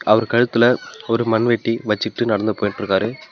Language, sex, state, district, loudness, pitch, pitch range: Tamil, male, Tamil Nadu, Namakkal, -19 LUFS, 115 Hz, 105-120 Hz